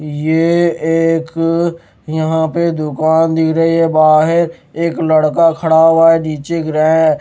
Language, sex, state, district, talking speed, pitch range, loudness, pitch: Hindi, male, Maharashtra, Mumbai Suburban, 140 wpm, 155-165 Hz, -13 LUFS, 160 Hz